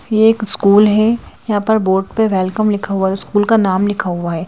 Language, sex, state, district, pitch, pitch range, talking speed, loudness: Hindi, female, Madhya Pradesh, Bhopal, 205 Hz, 190-215 Hz, 240 wpm, -14 LUFS